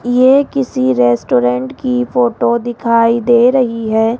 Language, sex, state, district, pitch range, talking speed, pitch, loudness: Hindi, female, Rajasthan, Jaipur, 220-250 Hz, 130 wpm, 235 Hz, -13 LUFS